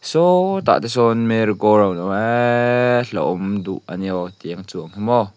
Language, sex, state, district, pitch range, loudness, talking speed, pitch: Mizo, male, Mizoram, Aizawl, 95-120 Hz, -18 LUFS, 200 wpm, 110 Hz